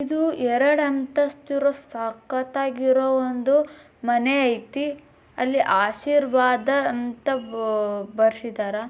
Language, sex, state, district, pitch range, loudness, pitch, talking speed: Kannada, female, Karnataka, Bijapur, 230-280 Hz, -23 LUFS, 260 Hz, 80 wpm